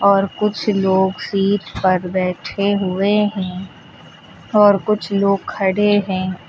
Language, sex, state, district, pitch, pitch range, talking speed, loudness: Hindi, female, Uttar Pradesh, Lucknow, 195 Hz, 185-205 Hz, 120 wpm, -17 LUFS